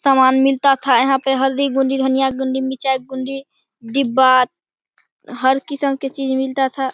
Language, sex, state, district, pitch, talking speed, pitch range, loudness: Hindi, male, Bihar, Begusarai, 265 Hz, 155 wpm, 265-275 Hz, -17 LUFS